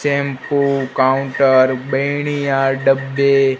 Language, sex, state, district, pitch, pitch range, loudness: Hindi, male, Gujarat, Gandhinagar, 135 Hz, 135-140 Hz, -16 LUFS